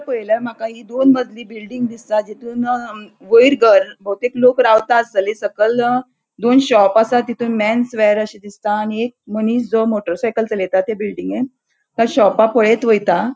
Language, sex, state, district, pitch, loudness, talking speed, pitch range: Konkani, female, Goa, North and South Goa, 230 Hz, -16 LUFS, 155 wpm, 215-245 Hz